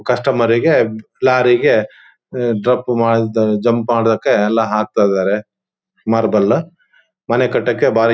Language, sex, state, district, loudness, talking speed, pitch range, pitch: Kannada, male, Karnataka, Shimoga, -15 LUFS, 80 wpm, 110-125 Hz, 115 Hz